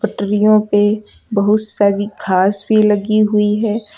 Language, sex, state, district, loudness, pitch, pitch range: Hindi, male, Uttar Pradesh, Lucknow, -14 LUFS, 210 Hz, 205-215 Hz